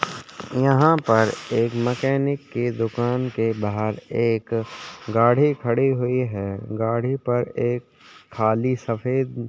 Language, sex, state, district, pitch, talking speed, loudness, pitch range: Hindi, male, Chhattisgarh, Sukma, 120 Hz, 120 wpm, -22 LUFS, 115-130 Hz